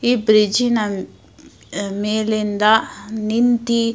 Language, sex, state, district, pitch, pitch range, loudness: Kannada, female, Karnataka, Mysore, 220 Hz, 210-230 Hz, -18 LUFS